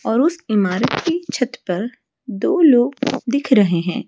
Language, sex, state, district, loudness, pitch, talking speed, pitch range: Hindi, female, Odisha, Malkangiri, -18 LUFS, 250 Hz, 160 wpm, 220-280 Hz